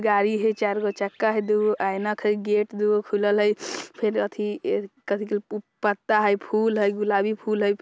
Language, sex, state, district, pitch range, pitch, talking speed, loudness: Bajjika, female, Bihar, Vaishali, 205-215 Hz, 210 Hz, 200 wpm, -24 LUFS